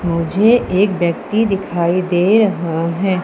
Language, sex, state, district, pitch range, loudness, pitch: Hindi, female, Madhya Pradesh, Umaria, 170-200 Hz, -15 LUFS, 185 Hz